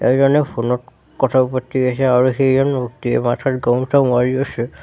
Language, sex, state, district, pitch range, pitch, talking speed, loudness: Assamese, male, Assam, Sonitpur, 125-135 Hz, 130 Hz, 160 wpm, -17 LUFS